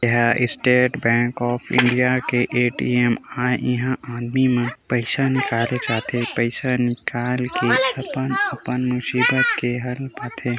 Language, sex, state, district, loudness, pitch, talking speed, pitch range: Chhattisgarhi, male, Chhattisgarh, Korba, -20 LUFS, 125 Hz, 125 wpm, 120-125 Hz